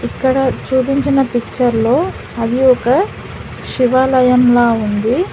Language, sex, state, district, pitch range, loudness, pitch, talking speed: Telugu, female, Telangana, Hyderabad, 240-265 Hz, -14 LUFS, 255 Hz, 100 wpm